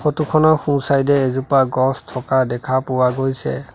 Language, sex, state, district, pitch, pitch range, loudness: Assamese, male, Assam, Sonitpur, 135 Hz, 130-140 Hz, -18 LUFS